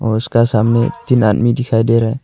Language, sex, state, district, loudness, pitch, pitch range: Hindi, male, Arunachal Pradesh, Longding, -14 LUFS, 115 Hz, 110-120 Hz